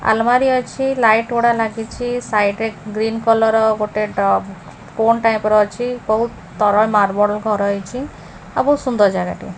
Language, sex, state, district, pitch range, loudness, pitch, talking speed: Odia, female, Odisha, Khordha, 210-235 Hz, -17 LUFS, 220 Hz, 155 wpm